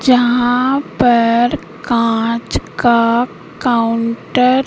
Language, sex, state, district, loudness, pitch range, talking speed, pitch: Hindi, female, Madhya Pradesh, Katni, -15 LUFS, 230-250 Hz, 75 wpm, 240 Hz